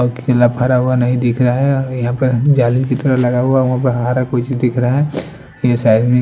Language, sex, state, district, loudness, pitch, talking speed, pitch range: Hindi, male, Punjab, Fazilka, -15 LUFS, 125 Hz, 250 wpm, 125-130 Hz